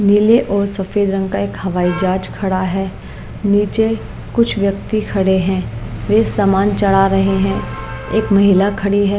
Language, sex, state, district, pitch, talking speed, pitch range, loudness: Hindi, female, Maharashtra, Mumbai Suburban, 195 Hz, 165 wpm, 190-205 Hz, -16 LUFS